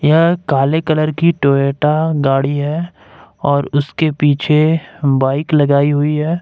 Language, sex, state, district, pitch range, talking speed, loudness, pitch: Hindi, male, Jharkhand, Ranchi, 140-160 Hz, 120 wpm, -15 LUFS, 150 Hz